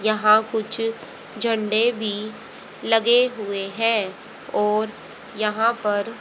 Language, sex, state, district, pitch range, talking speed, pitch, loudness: Hindi, female, Haryana, Rohtak, 210-225 Hz, 95 wpm, 220 Hz, -21 LUFS